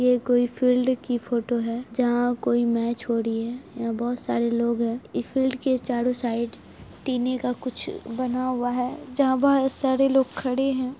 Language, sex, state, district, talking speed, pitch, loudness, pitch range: Hindi, female, Bihar, Araria, 185 wpm, 245 Hz, -25 LUFS, 235-255 Hz